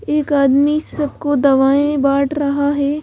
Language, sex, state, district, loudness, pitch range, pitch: Hindi, female, Madhya Pradesh, Bhopal, -15 LUFS, 280-295 Hz, 285 Hz